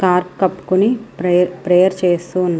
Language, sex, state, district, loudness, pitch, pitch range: Telugu, female, Andhra Pradesh, Srikakulam, -16 LUFS, 180 Hz, 180-185 Hz